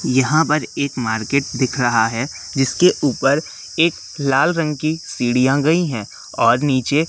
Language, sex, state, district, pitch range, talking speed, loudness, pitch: Hindi, male, Madhya Pradesh, Katni, 125-155 Hz, 150 wpm, -18 LUFS, 135 Hz